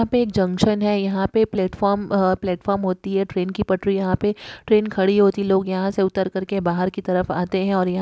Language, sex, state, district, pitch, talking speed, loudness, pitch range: Hindi, female, Andhra Pradesh, Guntur, 195 Hz, 215 wpm, -21 LUFS, 185-200 Hz